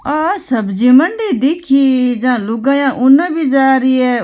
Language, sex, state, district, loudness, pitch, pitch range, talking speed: Marwari, female, Rajasthan, Nagaur, -12 LUFS, 265 Hz, 250-285 Hz, 155 wpm